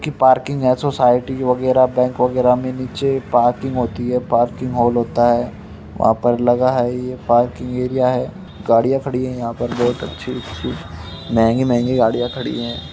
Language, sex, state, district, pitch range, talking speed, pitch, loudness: Hindi, male, Uttar Pradesh, Muzaffarnagar, 120-130 Hz, 170 wpm, 125 Hz, -18 LUFS